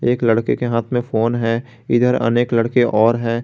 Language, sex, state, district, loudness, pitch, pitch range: Hindi, male, Jharkhand, Garhwa, -17 LUFS, 120 Hz, 115-120 Hz